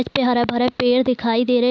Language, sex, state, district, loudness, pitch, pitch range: Hindi, female, Bihar, Gopalganj, -18 LUFS, 245 Hz, 240-250 Hz